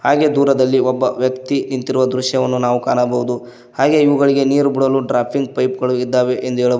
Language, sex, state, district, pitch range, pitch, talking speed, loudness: Kannada, male, Karnataka, Koppal, 125-135 Hz, 130 Hz, 170 wpm, -16 LUFS